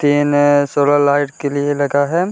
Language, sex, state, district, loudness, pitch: Hindi, male, Bihar, Gopalganj, -15 LUFS, 145 Hz